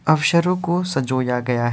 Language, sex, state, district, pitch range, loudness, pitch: Hindi, male, Uttar Pradesh, Varanasi, 125-175 Hz, -20 LUFS, 150 Hz